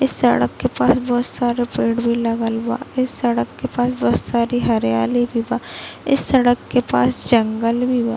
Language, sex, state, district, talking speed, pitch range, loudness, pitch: Hindi, female, Chhattisgarh, Bilaspur, 190 wpm, 230-250 Hz, -19 LUFS, 240 Hz